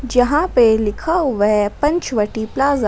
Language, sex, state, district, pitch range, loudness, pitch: Hindi, female, Jharkhand, Ranchi, 215-290 Hz, -17 LUFS, 245 Hz